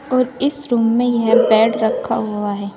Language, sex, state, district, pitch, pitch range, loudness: Hindi, female, Uttar Pradesh, Saharanpur, 230 Hz, 220-250 Hz, -16 LUFS